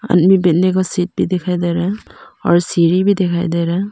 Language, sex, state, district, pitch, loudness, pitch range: Hindi, female, Arunachal Pradesh, Papum Pare, 180 Hz, -15 LUFS, 175-185 Hz